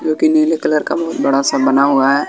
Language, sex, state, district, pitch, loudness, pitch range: Hindi, male, Bihar, West Champaran, 145 Hz, -14 LUFS, 135-155 Hz